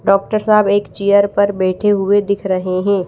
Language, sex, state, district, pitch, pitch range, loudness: Hindi, female, Odisha, Malkangiri, 200 Hz, 195-205 Hz, -15 LUFS